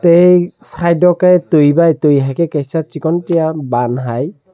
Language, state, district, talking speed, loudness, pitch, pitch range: Kokborok, Tripura, Dhalai, 160 wpm, -13 LUFS, 165 Hz, 150-175 Hz